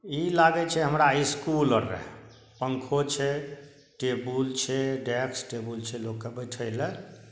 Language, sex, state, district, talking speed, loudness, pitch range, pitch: Maithili, male, Bihar, Saharsa, 150 wpm, -28 LUFS, 120-145 Hz, 130 Hz